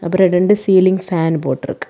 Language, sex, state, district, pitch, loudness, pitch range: Tamil, female, Tamil Nadu, Kanyakumari, 185 Hz, -14 LUFS, 165-190 Hz